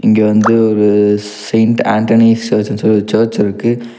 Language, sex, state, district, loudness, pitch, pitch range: Tamil, male, Tamil Nadu, Nilgiris, -12 LUFS, 110 Hz, 105-115 Hz